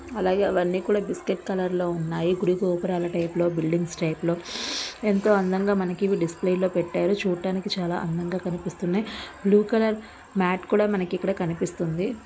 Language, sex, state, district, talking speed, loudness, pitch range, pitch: Telugu, female, Andhra Pradesh, Visakhapatnam, 160 wpm, -25 LUFS, 175-200 Hz, 185 Hz